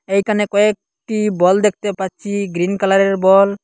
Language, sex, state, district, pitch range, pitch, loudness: Bengali, male, Assam, Hailakandi, 195-210 Hz, 200 Hz, -16 LUFS